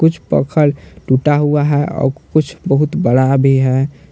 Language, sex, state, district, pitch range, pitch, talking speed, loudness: Hindi, male, Jharkhand, Palamu, 135-150 Hz, 145 Hz, 160 wpm, -14 LUFS